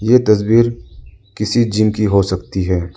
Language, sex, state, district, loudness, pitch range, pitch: Hindi, male, Arunachal Pradesh, Lower Dibang Valley, -15 LUFS, 95-115 Hz, 105 Hz